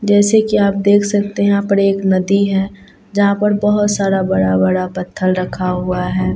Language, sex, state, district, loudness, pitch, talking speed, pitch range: Hindi, female, Bihar, Katihar, -15 LUFS, 195 Hz, 200 wpm, 185-205 Hz